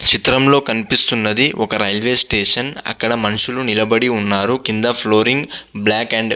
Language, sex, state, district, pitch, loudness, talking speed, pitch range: Telugu, male, Andhra Pradesh, Visakhapatnam, 115 Hz, -14 LUFS, 120 wpm, 110-125 Hz